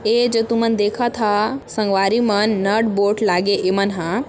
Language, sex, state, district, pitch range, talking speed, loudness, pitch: Chhattisgarhi, female, Chhattisgarh, Sarguja, 200-230 Hz, 170 wpm, -18 LUFS, 210 Hz